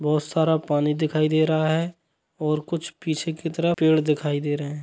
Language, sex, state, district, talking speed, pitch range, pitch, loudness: Hindi, male, Chhattisgarh, Sukma, 210 wpm, 150-160 Hz, 155 Hz, -23 LUFS